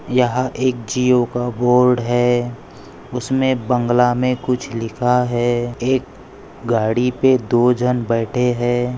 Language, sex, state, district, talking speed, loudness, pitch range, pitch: Hindi, male, Maharashtra, Chandrapur, 125 wpm, -18 LUFS, 120-125 Hz, 125 Hz